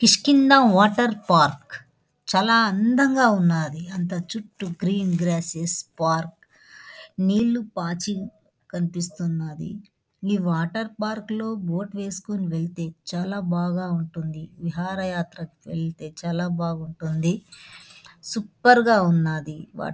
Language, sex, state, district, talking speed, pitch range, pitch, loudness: Telugu, female, Andhra Pradesh, Anantapur, 95 wpm, 165-205 Hz, 175 Hz, -23 LUFS